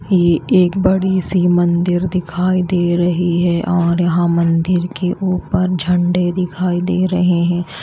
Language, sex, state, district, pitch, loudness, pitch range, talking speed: Hindi, female, Himachal Pradesh, Shimla, 175 Hz, -16 LUFS, 175-180 Hz, 155 wpm